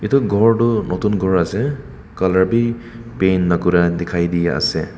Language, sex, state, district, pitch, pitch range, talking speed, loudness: Nagamese, male, Nagaland, Kohima, 95 Hz, 90-115 Hz, 170 wpm, -17 LUFS